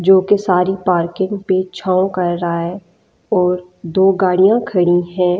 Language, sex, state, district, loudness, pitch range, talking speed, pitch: Hindi, female, Delhi, New Delhi, -16 LUFS, 175-190 Hz, 155 wpm, 185 Hz